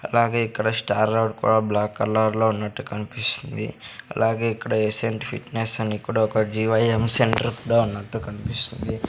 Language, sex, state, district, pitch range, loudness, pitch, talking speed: Telugu, male, Andhra Pradesh, Sri Satya Sai, 110-115 Hz, -23 LUFS, 110 Hz, 140 wpm